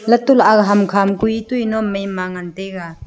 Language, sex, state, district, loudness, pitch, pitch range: Wancho, female, Arunachal Pradesh, Longding, -15 LUFS, 205 Hz, 195-220 Hz